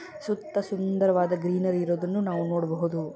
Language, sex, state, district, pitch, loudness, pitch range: Kannada, female, Karnataka, Belgaum, 180 Hz, -27 LUFS, 175-200 Hz